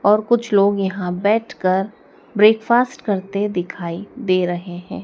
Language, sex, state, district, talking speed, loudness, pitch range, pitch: Hindi, female, Madhya Pradesh, Dhar, 145 wpm, -19 LUFS, 185-215 Hz, 200 Hz